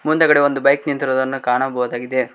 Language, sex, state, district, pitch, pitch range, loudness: Kannada, male, Karnataka, Koppal, 135 Hz, 130-145 Hz, -17 LUFS